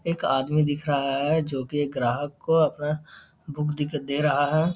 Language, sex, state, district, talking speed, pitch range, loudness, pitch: Hindi, male, Bihar, Darbhanga, 200 wpm, 145-155 Hz, -25 LUFS, 150 Hz